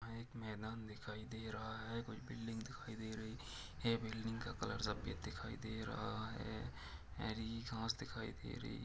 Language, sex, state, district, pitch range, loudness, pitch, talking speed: Hindi, male, Chhattisgarh, Sukma, 110-115 Hz, -46 LUFS, 110 Hz, 170 wpm